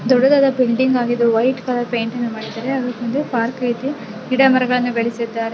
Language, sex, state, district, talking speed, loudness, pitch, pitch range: Kannada, female, Karnataka, Chamarajanagar, 150 wpm, -18 LUFS, 245 Hz, 235-255 Hz